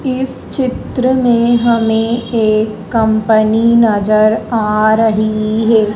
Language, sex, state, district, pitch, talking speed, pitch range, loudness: Hindi, female, Madhya Pradesh, Dhar, 225 Hz, 100 wpm, 215-235 Hz, -13 LUFS